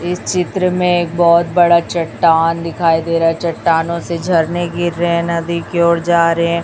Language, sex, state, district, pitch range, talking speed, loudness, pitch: Hindi, female, Chhattisgarh, Raipur, 165-175 Hz, 205 wpm, -15 LUFS, 170 Hz